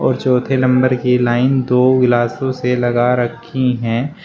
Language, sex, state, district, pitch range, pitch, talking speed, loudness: Hindi, male, Uttar Pradesh, Shamli, 120-130 Hz, 125 Hz, 155 wpm, -15 LUFS